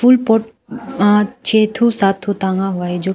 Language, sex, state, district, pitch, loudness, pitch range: Hindi, female, Arunachal Pradesh, Papum Pare, 210 Hz, -15 LUFS, 190-230 Hz